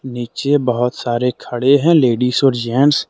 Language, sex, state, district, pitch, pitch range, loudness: Hindi, male, Jharkhand, Deoghar, 125 Hz, 120-140 Hz, -15 LUFS